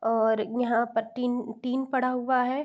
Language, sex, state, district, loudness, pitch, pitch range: Hindi, female, Uttar Pradesh, Varanasi, -27 LUFS, 245 Hz, 225-255 Hz